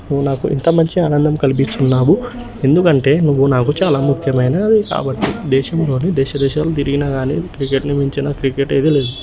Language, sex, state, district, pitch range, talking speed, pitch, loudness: Telugu, male, Telangana, Nalgonda, 135-150 Hz, 130 wpm, 140 Hz, -15 LUFS